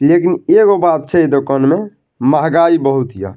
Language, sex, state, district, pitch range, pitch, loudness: Maithili, male, Bihar, Madhepura, 135-210 Hz, 165 Hz, -13 LUFS